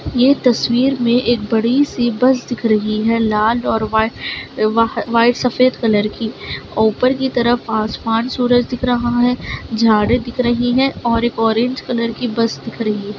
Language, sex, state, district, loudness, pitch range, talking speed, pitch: Hindi, female, Karnataka, Dakshina Kannada, -16 LUFS, 225-245 Hz, 170 wpm, 235 Hz